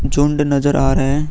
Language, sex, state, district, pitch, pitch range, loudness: Hindi, female, Bihar, Vaishali, 145 Hz, 140-145 Hz, -16 LUFS